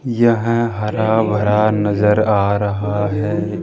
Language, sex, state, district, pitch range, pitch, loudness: Hindi, male, Rajasthan, Jaipur, 105-110 Hz, 105 Hz, -16 LUFS